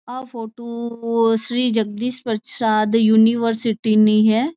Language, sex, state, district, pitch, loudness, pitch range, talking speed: Marwari, female, Rajasthan, Churu, 230 Hz, -18 LUFS, 220-235 Hz, 105 wpm